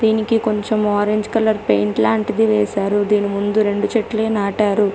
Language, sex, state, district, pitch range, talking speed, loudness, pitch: Telugu, female, Telangana, Karimnagar, 205-220 Hz, 135 wpm, -17 LUFS, 210 Hz